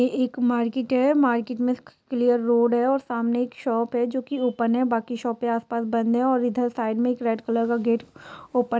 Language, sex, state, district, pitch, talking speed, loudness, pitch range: Hindi, female, Jharkhand, Jamtara, 240 Hz, 240 wpm, -24 LUFS, 235-250 Hz